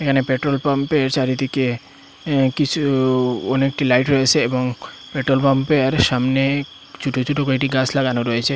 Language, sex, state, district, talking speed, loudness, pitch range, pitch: Bengali, male, Assam, Hailakandi, 120 wpm, -18 LUFS, 130-140 Hz, 135 Hz